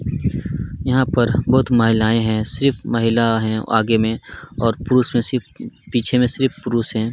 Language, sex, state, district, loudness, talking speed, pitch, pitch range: Hindi, male, Chhattisgarh, Kabirdham, -18 LUFS, 160 wpm, 115 Hz, 110-125 Hz